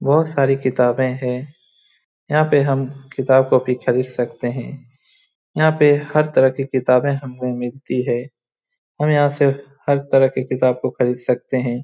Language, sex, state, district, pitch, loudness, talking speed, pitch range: Hindi, male, Bihar, Lakhisarai, 135 Hz, -18 LUFS, 175 wpm, 125-145 Hz